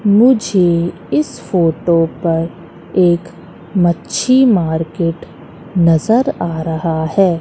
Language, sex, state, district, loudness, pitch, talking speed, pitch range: Hindi, female, Madhya Pradesh, Katni, -15 LUFS, 170 Hz, 90 wpm, 165-195 Hz